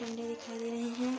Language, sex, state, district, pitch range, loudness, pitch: Hindi, female, Bihar, Araria, 230-235 Hz, -38 LUFS, 235 Hz